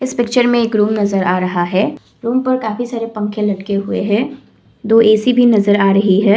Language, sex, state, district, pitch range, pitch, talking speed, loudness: Hindi, female, Assam, Kamrup Metropolitan, 200-240 Hz, 215 Hz, 225 wpm, -15 LUFS